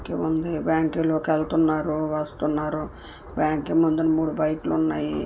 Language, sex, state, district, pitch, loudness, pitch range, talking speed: Telugu, female, Andhra Pradesh, Visakhapatnam, 155 Hz, -24 LUFS, 150-160 Hz, 115 wpm